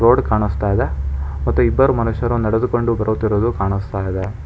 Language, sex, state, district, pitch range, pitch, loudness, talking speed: Kannada, male, Karnataka, Bangalore, 95-115 Hz, 105 Hz, -18 LUFS, 135 wpm